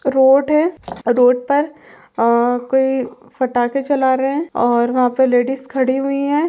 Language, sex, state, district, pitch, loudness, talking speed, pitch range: Hindi, female, Bihar, Lakhisarai, 265 Hz, -16 LUFS, 155 wpm, 245-280 Hz